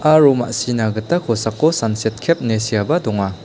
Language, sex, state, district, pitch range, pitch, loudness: Garo, male, Meghalaya, South Garo Hills, 110-140 Hz, 115 Hz, -17 LUFS